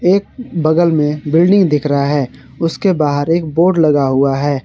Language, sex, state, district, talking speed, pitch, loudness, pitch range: Hindi, male, Jharkhand, Garhwa, 180 wpm, 155 Hz, -14 LUFS, 145-175 Hz